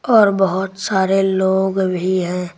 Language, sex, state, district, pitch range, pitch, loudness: Hindi, female, Delhi, New Delhi, 185-195 Hz, 190 Hz, -17 LUFS